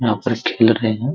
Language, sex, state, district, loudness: Hindi, male, Bihar, Araria, -17 LUFS